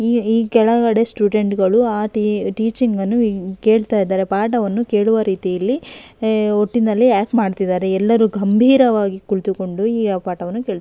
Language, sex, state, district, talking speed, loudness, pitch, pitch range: Kannada, female, Karnataka, Belgaum, 115 wpm, -17 LUFS, 215 Hz, 195-230 Hz